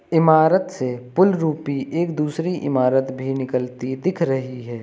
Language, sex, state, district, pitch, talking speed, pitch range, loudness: Hindi, male, Uttar Pradesh, Lucknow, 135 Hz, 150 wpm, 130-165 Hz, -20 LUFS